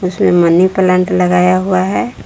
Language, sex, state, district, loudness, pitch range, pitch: Hindi, female, Jharkhand, Palamu, -12 LUFS, 180-185 Hz, 180 Hz